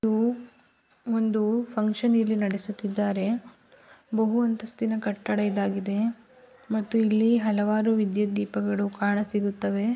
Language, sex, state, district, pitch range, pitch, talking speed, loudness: Kannada, female, Karnataka, Raichur, 205-225 Hz, 215 Hz, 95 wpm, -26 LUFS